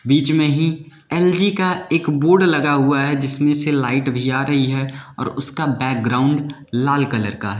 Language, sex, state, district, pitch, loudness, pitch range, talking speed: Hindi, male, Uttar Pradesh, Lalitpur, 140 Hz, -18 LUFS, 135-155 Hz, 190 wpm